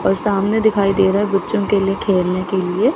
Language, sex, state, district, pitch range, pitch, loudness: Hindi, female, Chandigarh, Chandigarh, 190-205 Hz, 195 Hz, -17 LUFS